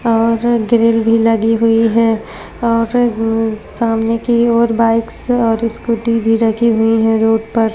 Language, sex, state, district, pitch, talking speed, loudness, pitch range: Hindi, female, Maharashtra, Chandrapur, 230 Hz, 155 wpm, -14 LUFS, 225-230 Hz